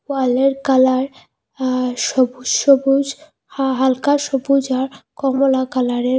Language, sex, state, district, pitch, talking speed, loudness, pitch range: Bengali, female, Assam, Hailakandi, 265 Hz, 105 wpm, -17 LUFS, 255-275 Hz